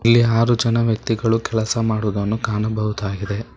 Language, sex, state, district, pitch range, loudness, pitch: Kannada, male, Karnataka, Bangalore, 105-115 Hz, -20 LUFS, 110 Hz